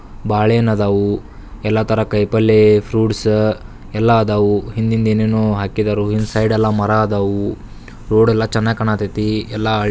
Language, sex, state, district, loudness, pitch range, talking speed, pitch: Kannada, male, Karnataka, Belgaum, -16 LUFS, 105-110 Hz, 115 wpm, 110 Hz